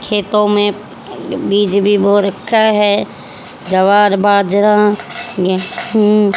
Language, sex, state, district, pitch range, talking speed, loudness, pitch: Hindi, female, Haryana, Charkhi Dadri, 200-210 Hz, 95 wpm, -13 LUFS, 205 Hz